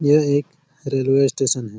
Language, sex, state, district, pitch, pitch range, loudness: Hindi, male, Chhattisgarh, Bastar, 140 Hz, 135-145 Hz, -19 LUFS